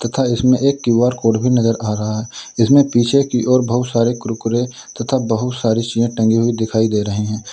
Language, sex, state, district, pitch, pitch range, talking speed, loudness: Hindi, male, Uttar Pradesh, Lalitpur, 115 Hz, 110-125 Hz, 205 wpm, -16 LUFS